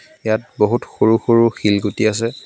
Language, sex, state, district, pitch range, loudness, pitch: Assamese, male, Assam, Kamrup Metropolitan, 110-120 Hz, -17 LUFS, 115 Hz